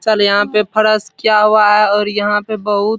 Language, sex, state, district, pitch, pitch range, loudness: Hindi, male, Bihar, Supaul, 210 Hz, 205-215 Hz, -13 LUFS